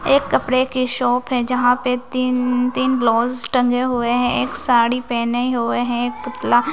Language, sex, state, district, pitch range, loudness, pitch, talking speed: Hindi, female, Bihar, West Champaran, 240-255 Hz, -18 LUFS, 250 Hz, 180 wpm